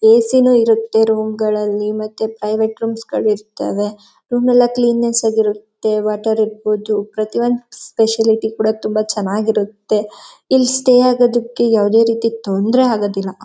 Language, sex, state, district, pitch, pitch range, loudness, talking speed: Kannada, female, Karnataka, Mysore, 220 Hz, 215-235 Hz, -16 LUFS, 125 wpm